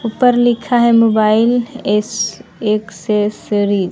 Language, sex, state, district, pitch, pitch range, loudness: Hindi, male, Bihar, West Champaran, 220 Hz, 210-240 Hz, -15 LUFS